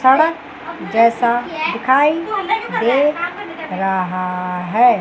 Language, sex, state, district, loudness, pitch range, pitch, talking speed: Hindi, female, Chandigarh, Chandigarh, -17 LUFS, 210-320 Hz, 250 Hz, 70 wpm